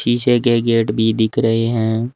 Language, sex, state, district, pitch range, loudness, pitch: Hindi, male, Uttar Pradesh, Shamli, 110-120 Hz, -16 LUFS, 115 Hz